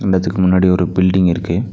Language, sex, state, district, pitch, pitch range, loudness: Tamil, male, Tamil Nadu, Nilgiris, 95 Hz, 90-95 Hz, -14 LUFS